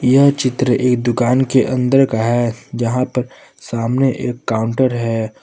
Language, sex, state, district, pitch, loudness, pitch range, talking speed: Hindi, male, Jharkhand, Palamu, 125 Hz, -16 LUFS, 115-130 Hz, 155 wpm